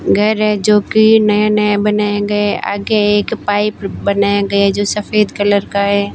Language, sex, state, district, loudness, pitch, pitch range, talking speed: Hindi, female, Rajasthan, Barmer, -14 LUFS, 205 Hz, 200-210 Hz, 175 wpm